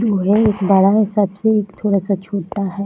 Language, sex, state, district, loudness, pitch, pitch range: Hindi, female, Bihar, Jamui, -16 LUFS, 200 Hz, 195-210 Hz